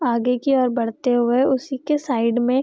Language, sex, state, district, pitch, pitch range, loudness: Hindi, female, Bihar, Gopalganj, 250 Hz, 240-265 Hz, -20 LUFS